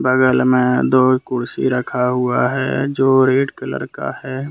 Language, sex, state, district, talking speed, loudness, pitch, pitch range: Hindi, male, Jharkhand, Deoghar, 160 wpm, -17 LUFS, 130 Hz, 125-130 Hz